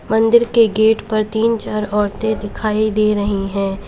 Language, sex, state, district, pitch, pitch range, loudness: Hindi, female, Uttar Pradesh, Lalitpur, 215 Hz, 205-220 Hz, -16 LUFS